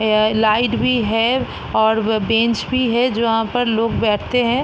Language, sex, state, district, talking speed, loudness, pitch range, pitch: Hindi, female, Bihar, East Champaran, 180 wpm, -17 LUFS, 220-245 Hz, 225 Hz